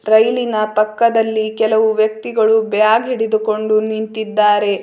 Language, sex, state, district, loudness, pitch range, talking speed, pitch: Kannada, female, Karnataka, Bidar, -15 LUFS, 215-220 Hz, 85 wpm, 220 Hz